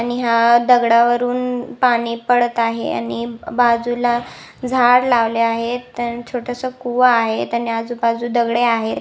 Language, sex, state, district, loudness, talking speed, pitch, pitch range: Marathi, female, Maharashtra, Nagpur, -17 LUFS, 135 wpm, 240 Hz, 235-245 Hz